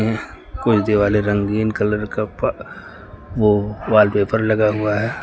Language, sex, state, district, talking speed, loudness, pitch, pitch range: Hindi, male, Uttar Pradesh, Lucknow, 125 wpm, -18 LUFS, 105 Hz, 105-110 Hz